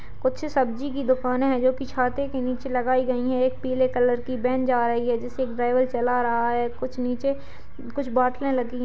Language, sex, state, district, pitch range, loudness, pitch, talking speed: Hindi, male, Bihar, Saharsa, 245-260 Hz, -24 LUFS, 255 Hz, 215 wpm